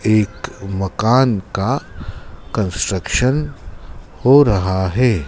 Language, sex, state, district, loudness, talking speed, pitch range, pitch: Hindi, male, Madhya Pradesh, Dhar, -17 LUFS, 80 wpm, 95-125 Hz, 105 Hz